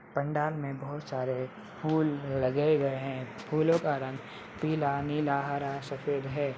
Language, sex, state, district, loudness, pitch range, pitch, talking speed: Hindi, male, Bihar, Jahanabad, -31 LUFS, 135-150 Hz, 140 Hz, 145 wpm